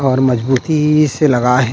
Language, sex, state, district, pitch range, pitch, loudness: Chhattisgarhi, male, Chhattisgarh, Rajnandgaon, 125-150 Hz, 130 Hz, -13 LUFS